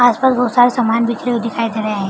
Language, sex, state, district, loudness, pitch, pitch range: Hindi, female, Bihar, Begusarai, -15 LUFS, 235 Hz, 225-245 Hz